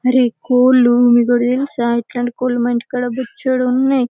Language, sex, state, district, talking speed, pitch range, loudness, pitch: Telugu, female, Telangana, Karimnagar, 130 wpm, 240-255 Hz, -15 LUFS, 250 Hz